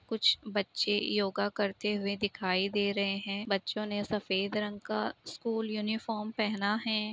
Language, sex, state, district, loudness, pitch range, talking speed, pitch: Hindi, female, Uttar Pradesh, Etah, -32 LUFS, 200-215 Hz, 150 wpm, 205 Hz